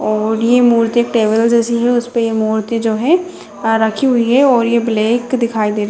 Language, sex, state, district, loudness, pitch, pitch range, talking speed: Hindi, female, Bihar, Jamui, -14 LUFS, 230 Hz, 220-240 Hz, 225 wpm